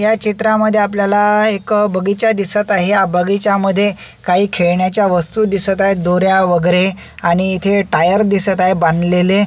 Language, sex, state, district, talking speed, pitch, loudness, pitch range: Marathi, male, Maharashtra, Solapur, 135 wpm, 195 Hz, -14 LUFS, 185-205 Hz